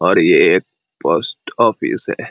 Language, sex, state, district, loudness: Hindi, male, Jharkhand, Jamtara, -14 LUFS